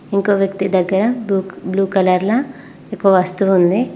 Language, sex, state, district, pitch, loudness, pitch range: Telugu, female, Telangana, Mahabubabad, 195 Hz, -16 LUFS, 190-200 Hz